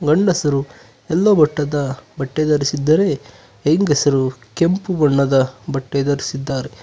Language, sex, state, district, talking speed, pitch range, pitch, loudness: Kannada, male, Karnataka, Bangalore, 90 wpm, 135-155 Hz, 140 Hz, -18 LUFS